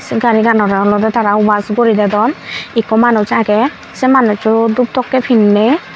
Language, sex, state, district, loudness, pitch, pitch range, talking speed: Chakma, female, Tripura, Unakoti, -12 LUFS, 225 Hz, 210-240 Hz, 160 wpm